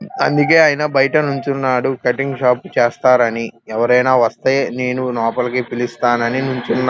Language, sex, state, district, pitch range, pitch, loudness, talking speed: Telugu, male, Andhra Pradesh, Krishna, 120-135 Hz, 125 Hz, -16 LUFS, 130 wpm